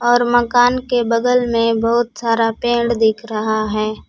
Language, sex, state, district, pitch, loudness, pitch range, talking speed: Hindi, female, Jharkhand, Palamu, 235 Hz, -16 LUFS, 225-240 Hz, 160 wpm